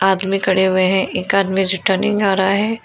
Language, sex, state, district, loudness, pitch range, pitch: Hindi, female, Uttar Pradesh, Shamli, -16 LUFS, 190-195 Hz, 190 Hz